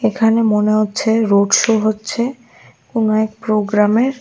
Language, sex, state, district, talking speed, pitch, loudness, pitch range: Bengali, female, Tripura, West Tripura, 130 wpm, 220 Hz, -15 LUFS, 210-230 Hz